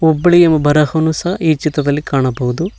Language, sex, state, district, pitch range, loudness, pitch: Kannada, male, Karnataka, Koppal, 145-165 Hz, -13 LUFS, 155 Hz